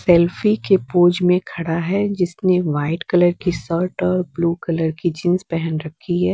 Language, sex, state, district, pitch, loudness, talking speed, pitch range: Hindi, female, Bihar, West Champaran, 175 Hz, -19 LUFS, 180 wpm, 165-180 Hz